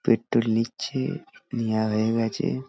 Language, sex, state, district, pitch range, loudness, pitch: Bengali, male, West Bengal, Dakshin Dinajpur, 110-115 Hz, -25 LUFS, 115 Hz